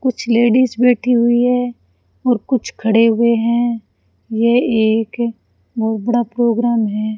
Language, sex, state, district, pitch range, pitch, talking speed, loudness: Hindi, female, Rajasthan, Bikaner, 225-240 Hz, 235 Hz, 135 wpm, -16 LUFS